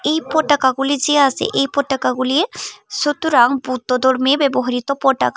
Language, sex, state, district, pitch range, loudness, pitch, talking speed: Bengali, female, Tripura, Unakoti, 255-290 Hz, -17 LUFS, 275 Hz, 135 wpm